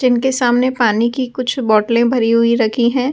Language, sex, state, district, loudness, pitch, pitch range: Hindi, female, Delhi, New Delhi, -15 LUFS, 240 Hz, 230-255 Hz